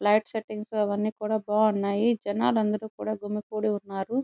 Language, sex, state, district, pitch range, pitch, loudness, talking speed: Telugu, female, Andhra Pradesh, Chittoor, 205-215 Hz, 215 Hz, -27 LUFS, 155 wpm